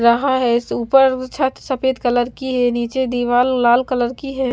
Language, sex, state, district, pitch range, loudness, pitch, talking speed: Hindi, female, Bihar, Kaimur, 240-260 Hz, -17 LUFS, 255 Hz, 200 wpm